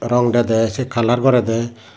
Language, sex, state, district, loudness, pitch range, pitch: Chakma, male, Tripura, Dhalai, -17 LUFS, 115-120 Hz, 120 Hz